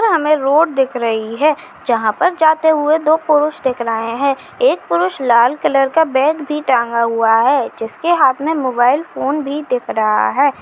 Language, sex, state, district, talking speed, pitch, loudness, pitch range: Chhattisgarhi, female, Chhattisgarh, Kabirdham, 190 wpm, 275 Hz, -15 LUFS, 235-310 Hz